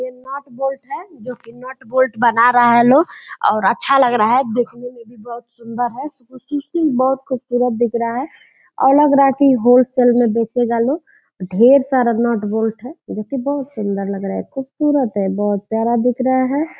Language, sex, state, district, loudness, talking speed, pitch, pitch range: Hindi, female, Bihar, Purnia, -16 LUFS, 200 wpm, 250 Hz, 235-270 Hz